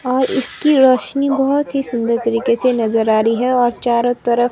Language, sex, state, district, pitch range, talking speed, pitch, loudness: Hindi, female, Himachal Pradesh, Shimla, 235-265 Hz, 200 wpm, 245 Hz, -16 LUFS